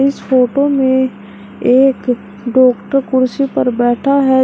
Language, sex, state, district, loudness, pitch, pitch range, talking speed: Hindi, female, Uttar Pradesh, Shamli, -13 LUFS, 260 Hz, 240-270 Hz, 120 wpm